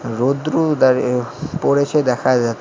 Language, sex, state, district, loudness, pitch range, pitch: Bengali, male, West Bengal, Alipurduar, -17 LUFS, 125-150 Hz, 130 Hz